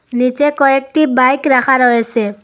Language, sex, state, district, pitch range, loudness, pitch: Bengali, female, Assam, Hailakandi, 245-275 Hz, -12 LUFS, 255 Hz